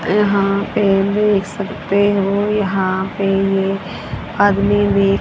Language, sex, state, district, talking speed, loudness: Hindi, female, Haryana, Rohtak, 115 wpm, -16 LUFS